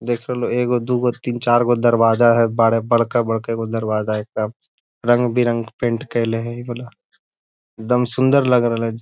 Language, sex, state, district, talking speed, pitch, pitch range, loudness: Magahi, male, Bihar, Gaya, 180 wpm, 120 Hz, 115-120 Hz, -18 LUFS